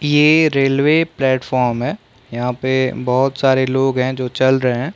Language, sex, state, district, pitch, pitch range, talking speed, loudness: Hindi, male, Chhattisgarh, Korba, 130 Hz, 125-140 Hz, 170 wpm, -16 LUFS